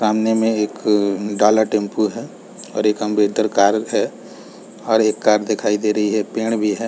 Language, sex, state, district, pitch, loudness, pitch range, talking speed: Hindi, male, Chhattisgarh, Raigarh, 105 Hz, -18 LUFS, 105-110 Hz, 200 wpm